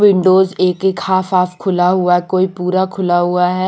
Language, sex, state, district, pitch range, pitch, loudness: Hindi, female, Punjab, Kapurthala, 180-190 Hz, 185 Hz, -14 LUFS